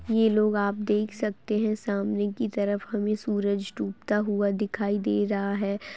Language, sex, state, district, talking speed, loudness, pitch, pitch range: Hindi, female, Uttar Pradesh, Etah, 170 wpm, -27 LUFS, 205 Hz, 200-215 Hz